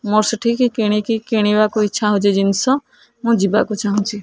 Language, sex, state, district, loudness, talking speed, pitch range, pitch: Odia, female, Odisha, Khordha, -17 LUFS, 140 wpm, 210-230 Hz, 215 Hz